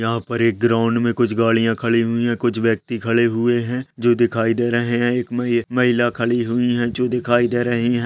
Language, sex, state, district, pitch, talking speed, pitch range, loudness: Hindi, male, Uttar Pradesh, Jyotiba Phule Nagar, 120 Hz, 240 wpm, 115-120 Hz, -19 LUFS